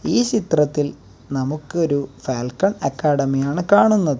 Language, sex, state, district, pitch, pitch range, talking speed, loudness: Malayalam, male, Kerala, Kasaragod, 145 Hz, 135-175 Hz, 100 wpm, -20 LUFS